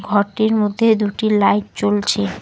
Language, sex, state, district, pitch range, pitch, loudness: Bengali, female, West Bengal, Alipurduar, 205-215 Hz, 210 Hz, -17 LUFS